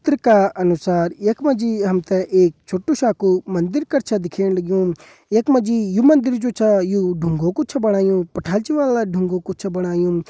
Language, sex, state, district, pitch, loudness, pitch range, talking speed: Hindi, male, Uttarakhand, Uttarkashi, 195 Hz, -18 LUFS, 180-230 Hz, 200 wpm